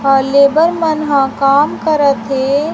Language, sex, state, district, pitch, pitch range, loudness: Hindi, female, Chhattisgarh, Raipur, 280 Hz, 275-310 Hz, -12 LUFS